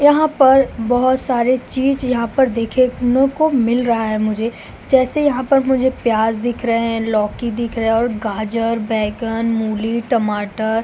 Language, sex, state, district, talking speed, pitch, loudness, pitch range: Hindi, female, Uttar Pradesh, Hamirpur, 170 wpm, 235 Hz, -17 LUFS, 225-260 Hz